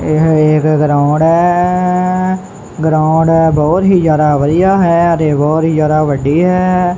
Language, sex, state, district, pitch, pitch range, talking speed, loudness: Punjabi, male, Punjab, Kapurthala, 160 Hz, 155-180 Hz, 135 wpm, -11 LUFS